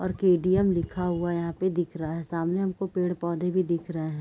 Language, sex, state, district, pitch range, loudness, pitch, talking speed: Hindi, female, Chhattisgarh, Raigarh, 170-185 Hz, -27 LUFS, 175 Hz, 230 wpm